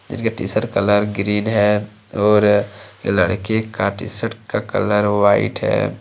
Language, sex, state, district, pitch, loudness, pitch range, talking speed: Hindi, male, Jharkhand, Deoghar, 105 Hz, -18 LUFS, 100-105 Hz, 130 wpm